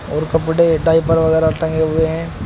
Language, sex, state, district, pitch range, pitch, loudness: Hindi, male, Uttar Pradesh, Shamli, 160-165 Hz, 160 Hz, -15 LUFS